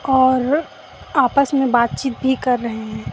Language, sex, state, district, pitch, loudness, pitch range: Hindi, female, Chhattisgarh, Raipur, 260 Hz, -18 LUFS, 240-270 Hz